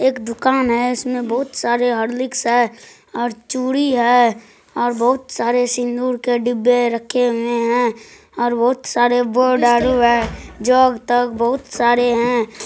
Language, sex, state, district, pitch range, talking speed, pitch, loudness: Hindi, male, Bihar, Supaul, 235-250 Hz, 150 wpm, 245 Hz, -17 LUFS